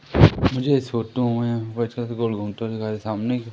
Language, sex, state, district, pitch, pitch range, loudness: Hindi, male, Madhya Pradesh, Umaria, 115 Hz, 110-120 Hz, -23 LUFS